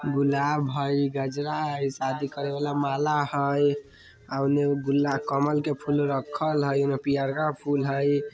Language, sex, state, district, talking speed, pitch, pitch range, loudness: Maithili, male, Bihar, Muzaffarpur, 160 wpm, 140 Hz, 140-145 Hz, -26 LUFS